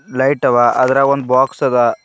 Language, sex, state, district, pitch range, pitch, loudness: Kannada, male, Karnataka, Bidar, 125-135 Hz, 130 Hz, -14 LUFS